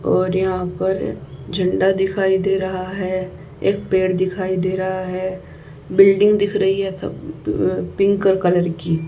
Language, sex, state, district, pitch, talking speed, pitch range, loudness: Hindi, female, Haryana, Charkhi Dadri, 185 Hz, 150 wpm, 185-195 Hz, -19 LUFS